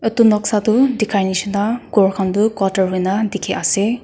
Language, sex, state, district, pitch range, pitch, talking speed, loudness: Nagamese, female, Nagaland, Kohima, 195-220 Hz, 205 Hz, 165 wpm, -17 LUFS